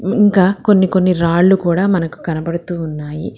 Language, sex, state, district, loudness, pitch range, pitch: Telugu, female, Telangana, Hyderabad, -15 LUFS, 165-190 Hz, 180 Hz